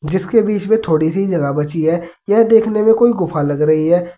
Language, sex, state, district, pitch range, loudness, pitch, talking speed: Hindi, male, Uttar Pradesh, Saharanpur, 155-215 Hz, -15 LUFS, 175 Hz, 230 wpm